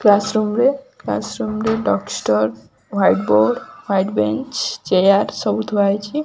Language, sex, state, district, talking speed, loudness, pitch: Odia, female, Odisha, Khordha, 145 wpm, -18 LUFS, 200 Hz